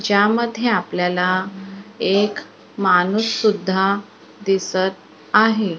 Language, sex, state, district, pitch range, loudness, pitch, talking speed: Marathi, female, Maharashtra, Gondia, 190-215 Hz, -19 LUFS, 200 Hz, 60 wpm